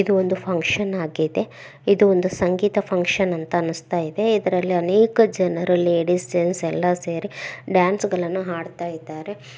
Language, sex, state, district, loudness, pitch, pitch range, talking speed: Kannada, female, Karnataka, Bellary, -21 LUFS, 180 Hz, 170-195 Hz, 140 wpm